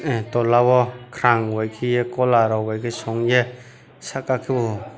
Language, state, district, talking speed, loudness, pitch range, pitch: Kokborok, Tripura, West Tripura, 145 wpm, -20 LUFS, 115-125 Hz, 120 Hz